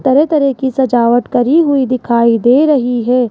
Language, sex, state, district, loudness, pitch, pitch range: Hindi, female, Rajasthan, Jaipur, -12 LUFS, 255 Hz, 245-275 Hz